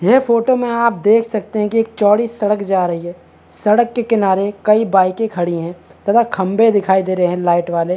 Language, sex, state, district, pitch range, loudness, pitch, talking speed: Hindi, male, Chhattisgarh, Bastar, 185-225 Hz, -15 LUFS, 205 Hz, 225 wpm